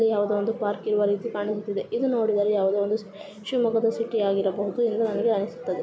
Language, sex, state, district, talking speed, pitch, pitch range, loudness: Kannada, female, Karnataka, Shimoga, 175 wpm, 210 Hz, 205-225 Hz, -25 LUFS